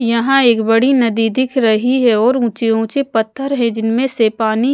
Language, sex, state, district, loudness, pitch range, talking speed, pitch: Hindi, female, Odisha, Malkangiri, -14 LUFS, 225-260 Hz, 190 wpm, 235 Hz